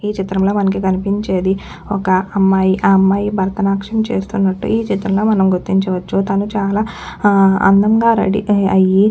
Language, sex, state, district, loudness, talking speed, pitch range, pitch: Telugu, female, Telangana, Nalgonda, -15 LUFS, 130 wpm, 190-205 Hz, 195 Hz